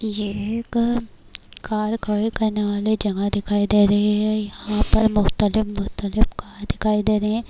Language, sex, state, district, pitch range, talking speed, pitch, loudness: Urdu, female, Bihar, Kishanganj, 205-220 Hz, 160 wpm, 210 Hz, -21 LUFS